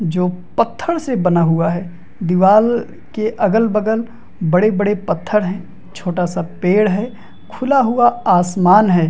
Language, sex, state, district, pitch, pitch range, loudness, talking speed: Hindi, male, Bihar, Madhepura, 205 Hz, 180-220 Hz, -16 LUFS, 130 wpm